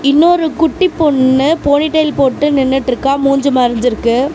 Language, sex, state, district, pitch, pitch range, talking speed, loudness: Tamil, female, Tamil Nadu, Namakkal, 280 Hz, 260-310 Hz, 110 wpm, -12 LUFS